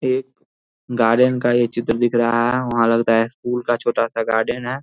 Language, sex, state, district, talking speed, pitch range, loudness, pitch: Hindi, male, Bihar, Darbhanga, 200 wpm, 115-125 Hz, -19 LUFS, 120 Hz